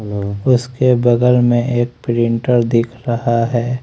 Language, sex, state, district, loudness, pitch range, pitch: Hindi, male, Haryana, Rohtak, -15 LUFS, 115-125 Hz, 120 Hz